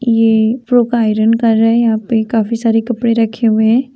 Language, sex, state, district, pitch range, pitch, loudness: Hindi, female, Uttar Pradesh, Budaun, 225-235 Hz, 230 Hz, -13 LUFS